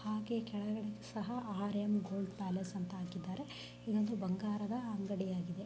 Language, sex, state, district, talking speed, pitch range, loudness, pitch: Kannada, female, Karnataka, Bellary, 115 wpm, 185-215 Hz, -40 LUFS, 205 Hz